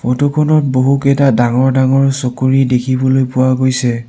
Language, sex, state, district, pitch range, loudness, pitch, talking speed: Assamese, male, Assam, Sonitpur, 130-135 Hz, -12 LUFS, 130 Hz, 115 wpm